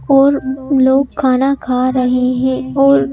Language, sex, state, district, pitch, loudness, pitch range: Hindi, female, Madhya Pradesh, Bhopal, 260 Hz, -14 LUFS, 255-275 Hz